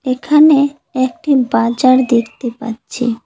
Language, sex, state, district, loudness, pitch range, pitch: Bengali, female, West Bengal, Cooch Behar, -13 LUFS, 235-275 Hz, 255 Hz